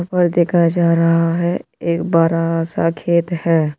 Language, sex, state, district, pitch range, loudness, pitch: Hindi, male, Tripura, West Tripura, 165-175 Hz, -16 LUFS, 170 Hz